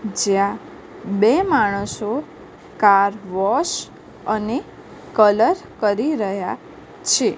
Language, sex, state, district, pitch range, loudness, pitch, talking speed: Gujarati, female, Gujarat, Gandhinagar, 200-230 Hz, -19 LUFS, 210 Hz, 80 wpm